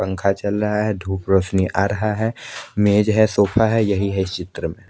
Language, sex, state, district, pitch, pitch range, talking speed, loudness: Hindi, male, Chandigarh, Chandigarh, 100 Hz, 95-105 Hz, 220 wpm, -19 LUFS